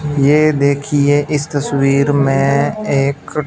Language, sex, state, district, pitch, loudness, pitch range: Hindi, male, Punjab, Fazilka, 145 Hz, -14 LUFS, 140-150 Hz